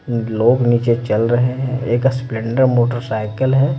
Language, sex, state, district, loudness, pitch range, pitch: Hindi, male, Bihar, Patna, -17 LUFS, 115-130 Hz, 120 Hz